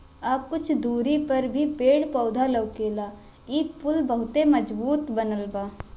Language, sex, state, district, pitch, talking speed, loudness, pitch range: Bhojpuri, female, Bihar, Gopalganj, 260 Hz, 140 wpm, -25 LUFS, 225-295 Hz